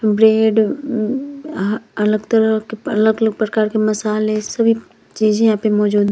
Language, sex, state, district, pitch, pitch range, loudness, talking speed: Hindi, female, Bihar, Vaishali, 220 Hz, 215-225 Hz, -17 LUFS, 155 wpm